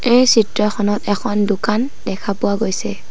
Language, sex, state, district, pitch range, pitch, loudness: Assamese, female, Assam, Sonitpur, 205-230 Hz, 210 Hz, -17 LUFS